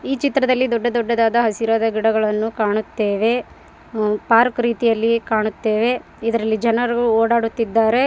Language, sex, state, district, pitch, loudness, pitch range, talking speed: Kannada, female, Karnataka, Raichur, 230 Hz, -18 LUFS, 220-235 Hz, 95 wpm